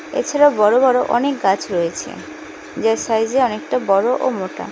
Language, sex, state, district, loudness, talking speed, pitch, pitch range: Bengali, female, West Bengal, Cooch Behar, -17 LUFS, 150 wpm, 225 Hz, 190-260 Hz